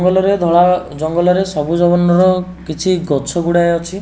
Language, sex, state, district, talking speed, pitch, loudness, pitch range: Odia, male, Odisha, Nuapada, 135 wpm, 175 Hz, -14 LUFS, 170-180 Hz